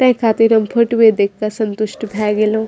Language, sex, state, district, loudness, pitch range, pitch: Maithili, female, Bihar, Madhepura, -15 LUFS, 215-225 Hz, 220 Hz